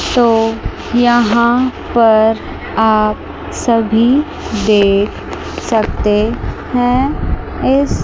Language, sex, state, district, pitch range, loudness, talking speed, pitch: Hindi, male, Chandigarh, Chandigarh, 215-245 Hz, -14 LUFS, 65 wpm, 230 Hz